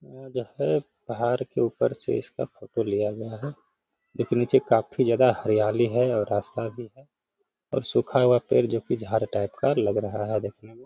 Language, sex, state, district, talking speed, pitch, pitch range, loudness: Hindi, male, Bihar, Gaya, 205 wpm, 120 Hz, 110-125 Hz, -25 LUFS